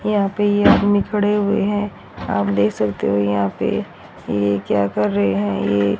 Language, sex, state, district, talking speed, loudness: Hindi, female, Haryana, Rohtak, 190 wpm, -19 LUFS